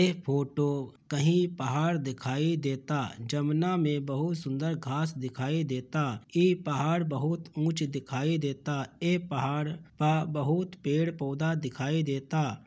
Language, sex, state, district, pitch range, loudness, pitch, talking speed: Bhojpuri, male, Bihar, Gopalganj, 135-160 Hz, -30 LUFS, 150 Hz, 130 wpm